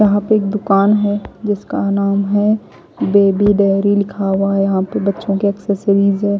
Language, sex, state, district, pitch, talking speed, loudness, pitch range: Hindi, female, Chandigarh, Chandigarh, 200 Hz, 170 wpm, -15 LUFS, 200-205 Hz